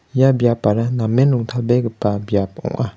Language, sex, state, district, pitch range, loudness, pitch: Garo, male, Meghalaya, West Garo Hills, 105-130 Hz, -18 LUFS, 120 Hz